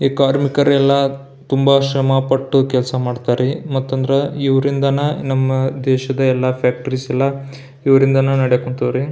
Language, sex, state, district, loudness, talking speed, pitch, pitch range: Kannada, male, Karnataka, Belgaum, -16 LUFS, 125 wpm, 135 Hz, 130-140 Hz